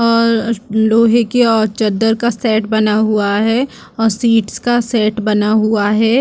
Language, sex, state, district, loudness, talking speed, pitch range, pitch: Hindi, female, Chhattisgarh, Bastar, -14 LUFS, 165 wpm, 215-230 Hz, 225 Hz